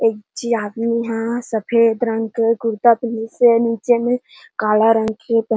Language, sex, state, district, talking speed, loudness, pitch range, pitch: Chhattisgarhi, female, Chhattisgarh, Jashpur, 170 wpm, -18 LUFS, 225-235 Hz, 230 Hz